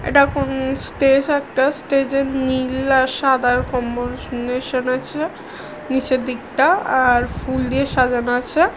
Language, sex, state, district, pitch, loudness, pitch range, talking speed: Bengali, female, West Bengal, Malda, 265 Hz, -19 LUFS, 255-275 Hz, 110 wpm